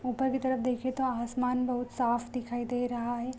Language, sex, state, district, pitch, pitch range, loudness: Hindi, female, Bihar, Vaishali, 250 Hz, 240-255 Hz, -31 LUFS